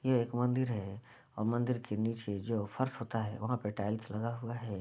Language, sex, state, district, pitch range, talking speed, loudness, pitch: Hindi, male, Bihar, Bhagalpur, 105-120 Hz, 225 wpm, -36 LUFS, 115 Hz